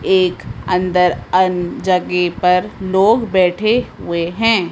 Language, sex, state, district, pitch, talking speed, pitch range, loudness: Hindi, female, Madhya Pradesh, Bhopal, 185 Hz, 115 wpm, 180-190 Hz, -16 LUFS